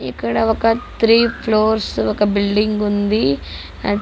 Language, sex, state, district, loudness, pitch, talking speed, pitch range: Telugu, female, Andhra Pradesh, Guntur, -17 LUFS, 210 Hz, 120 wpm, 140-220 Hz